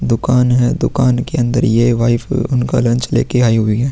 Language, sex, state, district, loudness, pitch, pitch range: Hindi, male, Uttar Pradesh, Hamirpur, -14 LUFS, 125 Hz, 120-125 Hz